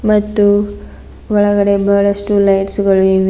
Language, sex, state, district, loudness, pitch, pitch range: Kannada, female, Karnataka, Bidar, -13 LUFS, 200 Hz, 200-205 Hz